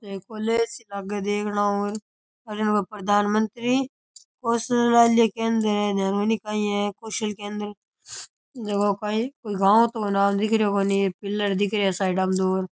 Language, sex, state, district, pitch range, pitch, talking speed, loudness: Rajasthani, male, Rajasthan, Churu, 200-225 Hz, 210 Hz, 155 wpm, -23 LUFS